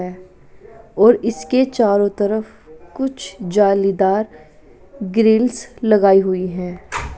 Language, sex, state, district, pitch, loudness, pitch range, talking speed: Hindi, female, Uttar Pradesh, Jalaun, 200 Hz, -17 LUFS, 185-230 Hz, 90 wpm